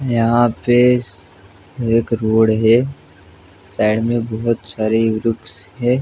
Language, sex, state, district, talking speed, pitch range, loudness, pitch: Hindi, male, Jharkhand, Jamtara, 100 wpm, 100-120 Hz, -17 LUFS, 115 Hz